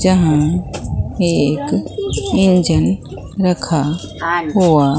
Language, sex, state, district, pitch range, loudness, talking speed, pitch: Hindi, female, Bihar, Katihar, 150-180 Hz, -16 LUFS, 70 wpm, 165 Hz